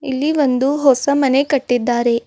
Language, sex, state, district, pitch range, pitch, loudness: Kannada, female, Karnataka, Bidar, 245-280 Hz, 270 Hz, -16 LUFS